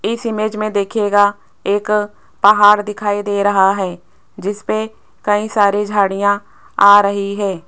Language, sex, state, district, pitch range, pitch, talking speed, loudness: Hindi, female, Rajasthan, Jaipur, 200-210 Hz, 205 Hz, 135 wpm, -15 LUFS